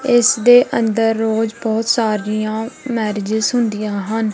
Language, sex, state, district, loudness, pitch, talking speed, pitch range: Punjabi, female, Punjab, Kapurthala, -16 LUFS, 225 Hz, 125 wpm, 215-235 Hz